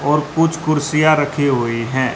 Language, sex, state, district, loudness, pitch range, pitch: Hindi, male, Haryana, Rohtak, -17 LUFS, 130-155 Hz, 150 Hz